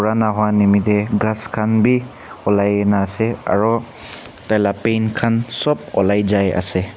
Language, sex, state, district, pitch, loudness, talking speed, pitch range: Nagamese, male, Nagaland, Kohima, 105 Hz, -17 LUFS, 155 wpm, 100-115 Hz